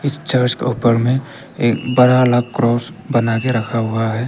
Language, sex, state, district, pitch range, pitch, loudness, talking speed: Hindi, male, Arunachal Pradesh, Papum Pare, 115-130 Hz, 125 Hz, -16 LUFS, 180 wpm